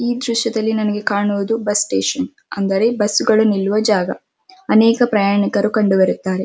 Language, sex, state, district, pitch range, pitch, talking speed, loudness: Kannada, female, Karnataka, Dharwad, 200-230 Hz, 210 Hz, 140 wpm, -16 LUFS